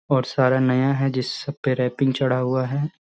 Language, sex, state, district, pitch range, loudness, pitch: Hindi, male, Bihar, Sitamarhi, 130-135 Hz, -22 LUFS, 130 Hz